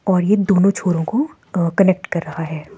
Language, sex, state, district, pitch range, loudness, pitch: Hindi, female, Himachal Pradesh, Shimla, 170-200 Hz, -18 LUFS, 185 Hz